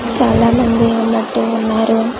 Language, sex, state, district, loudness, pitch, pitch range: Telugu, female, Andhra Pradesh, Manyam, -14 LUFS, 230 Hz, 225-235 Hz